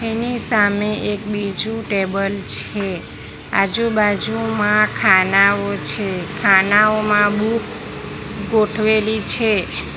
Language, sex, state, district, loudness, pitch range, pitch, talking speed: Gujarati, female, Gujarat, Valsad, -17 LUFS, 195-215 Hz, 210 Hz, 80 wpm